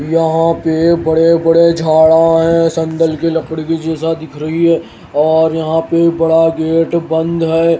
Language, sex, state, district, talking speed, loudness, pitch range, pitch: Hindi, male, Haryana, Rohtak, 160 wpm, -12 LUFS, 160-165 Hz, 165 Hz